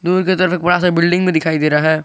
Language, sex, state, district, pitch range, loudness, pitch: Hindi, male, Jharkhand, Garhwa, 160-180 Hz, -14 LUFS, 175 Hz